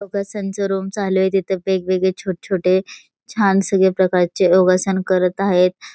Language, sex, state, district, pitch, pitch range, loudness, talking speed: Marathi, female, Maharashtra, Pune, 190 Hz, 185-195 Hz, -18 LUFS, 150 wpm